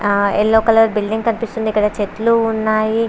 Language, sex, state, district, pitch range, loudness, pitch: Telugu, female, Andhra Pradesh, Visakhapatnam, 210-225 Hz, -16 LUFS, 220 Hz